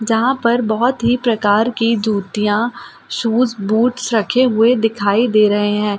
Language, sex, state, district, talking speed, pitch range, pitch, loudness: Hindi, female, Delhi, New Delhi, 150 wpm, 210-240 Hz, 225 Hz, -16 LUFS